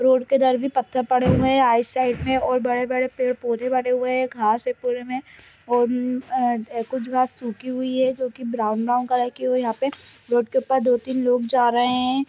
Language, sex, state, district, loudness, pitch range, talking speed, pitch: Hindi, male, Bihar, Gaya, -22 LUFS, 245-255 Hz, 210 wpm, 250 Hz